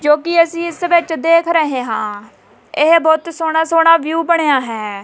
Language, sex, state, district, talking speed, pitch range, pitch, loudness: Punjabi, female, Punjab, Kapurthala, 180 wpm, 290-335 Hz, 320 Hz, -14 LUFS